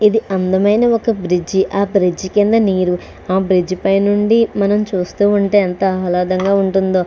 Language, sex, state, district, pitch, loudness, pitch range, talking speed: Telugu, female, Andhra Pradesh, Krishna, 195 Hz, -15 LUFS, 185-205 Hz, 155 wpm